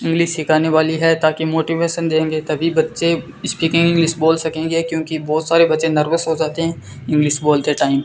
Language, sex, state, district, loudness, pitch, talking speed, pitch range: Hindi, male, Rajasthan, Bikaner, -17 LUFS, 160 Hz, 185 wpm, 155-165 Hz